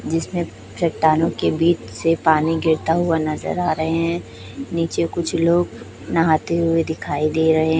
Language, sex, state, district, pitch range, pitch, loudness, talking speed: Hindi, male, Chhattisgarh, Raipur, 160-170 Hz, 165 Hz, -20 LUFS, 155 wpm